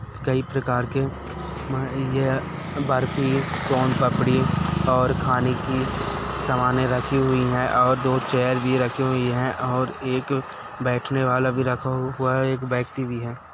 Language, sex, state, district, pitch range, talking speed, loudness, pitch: Hindi, male, Chhattisgarh, Raigarh, 125-135 Hz, 135 wpm, -23 LUFS, 130 Hz